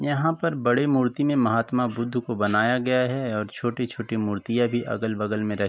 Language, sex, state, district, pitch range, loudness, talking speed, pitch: Hindi, male, Uttar Pradesh, Varanasi, 110-125 Hz, -24 LUFS, 210 wpm, 120 Hz